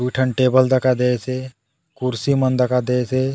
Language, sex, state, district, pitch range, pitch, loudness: Halbi, male, Chhattisgarh, Bastar, 125-130 Hz, 130 Hz, -19 LUFS